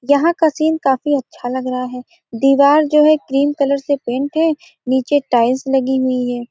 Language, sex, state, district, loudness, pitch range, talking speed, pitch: Hindi, female, Bihar, Gopalganj, -16 LUFS, 255-300 Hz, 175 wpm, 275 Hz